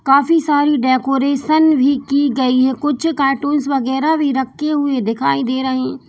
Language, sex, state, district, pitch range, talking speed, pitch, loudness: Hindi, female, Uttar Pradesh, Saharanpur, 260-295 Hz, 165 wpm, 275 Hz, -16 LUFS